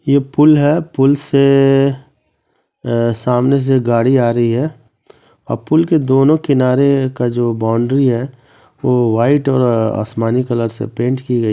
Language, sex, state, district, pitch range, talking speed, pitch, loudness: Hindi, male, Bihar, Samastipur, 120-140 Hz, 165 wpm, 130 Hz, -14 LUFS